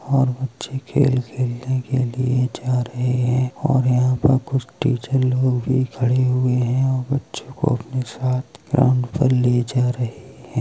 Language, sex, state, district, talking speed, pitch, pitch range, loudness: Hindi, male, Uttar Pradesh, Hamirpur, 170 wpm, 130 Hz, 125-130 Hz, -20 LUFS